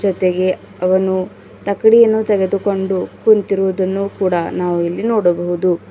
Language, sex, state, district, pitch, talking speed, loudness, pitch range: Kannada, female, Karnataka, Bidar, 190 Hz, 90 wpm, -16 LUFS, 185-200 Hz